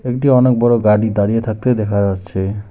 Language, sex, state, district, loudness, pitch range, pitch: Bengali, male, West Bengal, Alipurduar, -15 LUFS, 100-125 Hz, 110 Hz